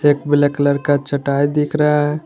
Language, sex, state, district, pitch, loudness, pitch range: Hindi, male, Jharkhand, Garhwa, 145 Hz, -16 LUFS, 145-150 Hz